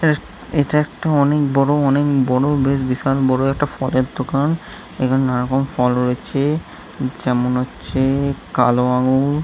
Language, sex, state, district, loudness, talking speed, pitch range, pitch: Bengali, male, West Bengal, Jhargram, -18 LUFS, 145 wpm, 130-145 Hz, 135 Hz